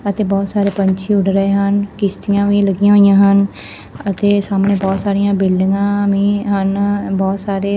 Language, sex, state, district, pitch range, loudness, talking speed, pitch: Punjabi, male, Punjab, Fazilka, 195-200 Hz, -14 LUFS, 160 wpm, 200 Hz